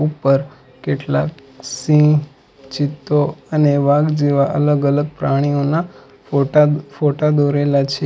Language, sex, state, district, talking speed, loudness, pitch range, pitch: Gujarati, male, Gujarat, Valsad, 110 wpm, -17 LUFS, 140-150 Hz, 145 Hz